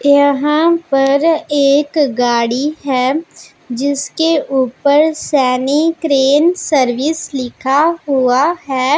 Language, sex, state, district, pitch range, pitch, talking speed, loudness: Hindi, female, Punjab, Pathankot, 265-310 Hz, 285 Hz, 85 wpm, -14 LUFS